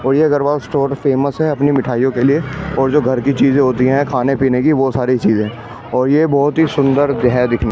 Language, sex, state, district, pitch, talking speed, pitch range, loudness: Hindi, male, Delhi, New Delhi, 135 Hz, 250 wpm, 125-145 Hz, -15 LUFS